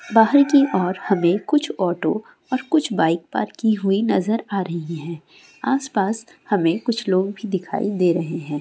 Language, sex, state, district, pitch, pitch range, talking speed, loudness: Hindi, female, Andhra Pradesh, Guntur, 200 Hz, 175-235 Hz, 175 wpm, -21 LUFS